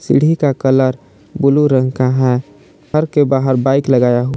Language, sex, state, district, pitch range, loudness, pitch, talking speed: Hindi, male, Jharkhand, Palamu, 125-140 Hz, -14 LUFS, 130 Hz, 180 wpm